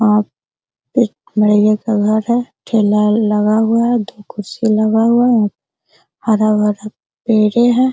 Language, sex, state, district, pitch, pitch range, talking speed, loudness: Hindi, female, Bihar, Araria, 215 Hz, 210-235 Hz, 135 wpm, -14 LUFS